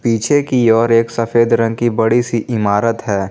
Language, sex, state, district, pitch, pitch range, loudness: Hindi, male, Jharkhand, Garhwa, 115 Hz, 115-120 Hz, -14 LUFS